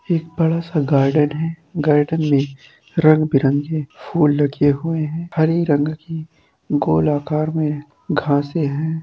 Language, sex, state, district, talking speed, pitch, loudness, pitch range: Hindi, male, Uttar Pradesh, Jyotiba Phule Nagar, 135 wpm, 155 Hz, -19 LUFS, 145-160 Hz